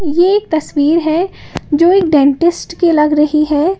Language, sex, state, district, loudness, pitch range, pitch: Hindi, female, Uttar Pradesh, Lalitpur, -12 LUFS, 300-345 Hz, 325 Hz